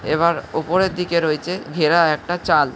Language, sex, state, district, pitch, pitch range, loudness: Bengali, male, West Bengal, Jhargram, 170 Hz, 155-175 Hz, -19 LUFS